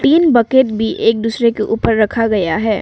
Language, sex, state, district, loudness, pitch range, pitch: Hindi, female, Arunachal Pradesh, Papum Pare, -14 LUFS, 215-240 Hz, 225 Hz